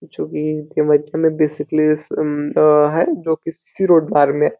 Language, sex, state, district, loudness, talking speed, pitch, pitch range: Hindi, male, Uttar Pradesh, Deoria, -17 LUFS, 170 wpm, 155 Hz, 150-160 Hz